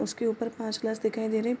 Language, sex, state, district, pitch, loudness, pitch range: Hindi, female, Bihar, Darbhanga, 225 Hz, -30 LUFS, 220-230 Hz